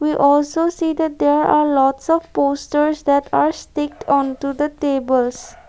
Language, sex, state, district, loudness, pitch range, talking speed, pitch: English, female, Assam, Kamrup Metropolitan, -18 LUFS, 280-315 Hz, 170 wpm, 295 Hz